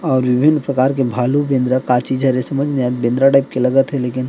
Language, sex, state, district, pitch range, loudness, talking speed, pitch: Chhattisgarhi, male, Chhattisgarh, Rajnandgaon, 125-135 Hz, -16 LUFS, 265 wpm, 130 Hz